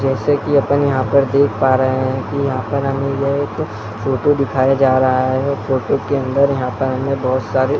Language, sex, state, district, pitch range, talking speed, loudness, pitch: Hindi, male, Bihar, Muzaffarpur, 130-140 Hz, 225 wpm, -17 LUFS, 135 Hz